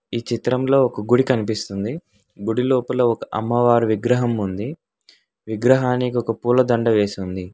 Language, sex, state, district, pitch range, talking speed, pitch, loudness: Telugu, male, Telangana, Hyderabad, 110-125 Hz, 120 wpm, 120 Hz, -20 LUFS